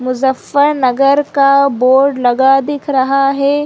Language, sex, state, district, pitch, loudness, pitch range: Hindi, female, Uttar Pradesh, Muzaffarnagar, 275 Hz, -12 LUFS, 265-280 Hz